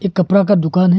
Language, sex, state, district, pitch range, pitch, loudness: Hindi, male, Arunachal Pradesh, Longding, 180-200 Hz, 185 Hz, -14 LUFS